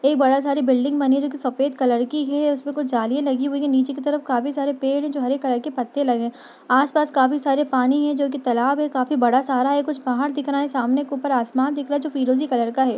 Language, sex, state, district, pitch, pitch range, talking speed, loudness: Hindi, female, Uttar Pradesh, Etah, 275 Hz, 255-285 Hz, 290 wpm, -21 LUFS